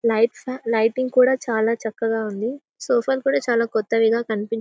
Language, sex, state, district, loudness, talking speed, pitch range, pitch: Telugu, female, Telangana, Karimnagar, -21 LUFS, 155 wpm, 225-255 Hz, 230 Hz